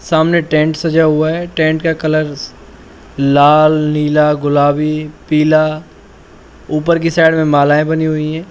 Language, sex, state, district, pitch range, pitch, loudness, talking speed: Hindi, male, Uttar Pradesh, Shamli, 150-160 Hz, 155 Hz, -13 LUFS, 140 wpm